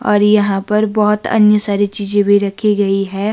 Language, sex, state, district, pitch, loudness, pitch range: Hindi, female, Himachal Pradesh, Shimla, 205 Hz, -14 LUFS, 200-210 Hz